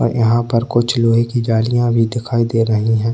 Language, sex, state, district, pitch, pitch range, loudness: Hindi, male, Chhattisgarh, Kabirdham, 115 Hz, 115-120 Hz, -16 LUFS